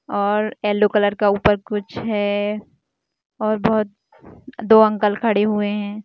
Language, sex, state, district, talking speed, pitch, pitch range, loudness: Hindi, female, Chhattisgarh, Jashpur, 140 wpm, 210 Hz, 205-215 Hz, -19 LUFS